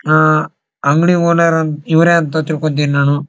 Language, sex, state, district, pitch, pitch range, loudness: Kannada, male, Karnataka, Dharwad, 155 Hz, 150-165 Hz, -13 LUFS